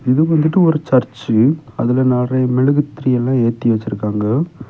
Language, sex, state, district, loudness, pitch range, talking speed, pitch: Tamil, male, Tamil Nadu, Kanyakumari, -16 LUFS, 120-145 Hz, 130 wpm, 130 Hz